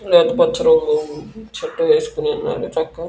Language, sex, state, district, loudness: Telugu, male, Andhra Pradesh, Krishna, -17 LUFS